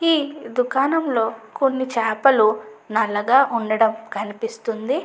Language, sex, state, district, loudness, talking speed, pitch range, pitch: Telugu, female, Andhra Pradesh, Anantapur, -20 LUFS, 85 wpm, 220-270 Hz, 230 Hz